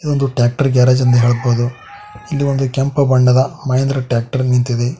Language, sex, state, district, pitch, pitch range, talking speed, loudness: Kannada, male, Karnataka, Koppal, 130 Hz, 120-135 Hz, 145 wpm, -15 LUFS